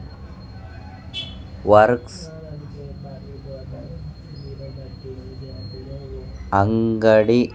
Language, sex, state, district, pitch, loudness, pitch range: Telugu, male, Andhra Pradesh, Sri Satya Sai, 105 Hz, -18 LUFS, 95-115 Hz